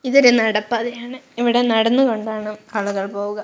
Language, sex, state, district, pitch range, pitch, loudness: Malayalam, female, Kerala, Kozhikode, 210-245 Hz, 230 Hz, -18 LUFS